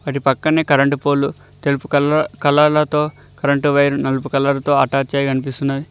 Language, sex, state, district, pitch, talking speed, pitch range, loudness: Telugu, male, Telangana, Mahabubabad, 140 Hz, 150 wpm, 135-145 Hz, -17 LUFS